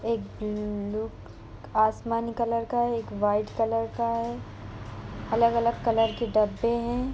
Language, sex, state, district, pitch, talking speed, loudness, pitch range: Hindi, female, Uttar Pradesh, Etah, 225 Hz, 145 wpm, -27 LUFS, 205-230 Hz